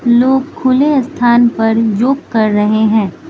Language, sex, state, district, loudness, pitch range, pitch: Hindi, female, Manipur, Imphal West, -12 LUFS, 220-265 Hz, 240 Hz